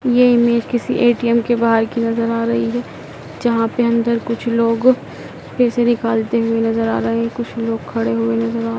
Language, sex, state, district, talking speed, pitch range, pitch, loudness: Hindi, female, Madhya Pradesh, Dhar, 205 wpm, 230-240 Hz, 230 Hz, -17 LUFS